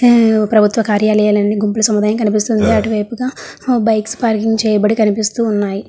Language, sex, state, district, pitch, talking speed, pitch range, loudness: Telugu, male, Andhra Pradesh, Srikakulam, 215 Hz, 110 wpm, 210-225 Hz, -14 LUFS